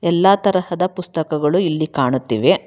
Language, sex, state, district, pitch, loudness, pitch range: Kannada, female, Karnataka, Bangalore, 170 Hz, -18 LUFS, 155-185 Hz